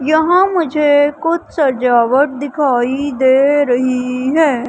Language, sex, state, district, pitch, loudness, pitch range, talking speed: Hindi, female, Madhya Pradesh, Umaria, 285 Hz, -14 LUFS, 255-305 Hz, 100 wpm